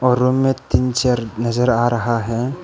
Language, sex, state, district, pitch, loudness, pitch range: Hindi, male, Arunachal Pradesh, Papum Pare, 125 Hz, -18 LUFS, 120-125 Hz